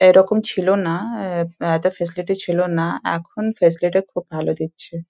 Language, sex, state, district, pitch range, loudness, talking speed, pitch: Bengali, female, West Bengal, Dakshin Dinajpur, 170-190 Hz, -20 LUFS, 155 wpm, 180 Hz